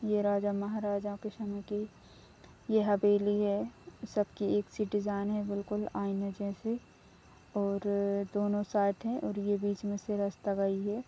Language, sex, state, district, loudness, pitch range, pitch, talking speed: Hindi, female, Uttarakhand, Uttarkashi, -33 LUFS, 200-210 Hz, 205 Hz, 155 wpm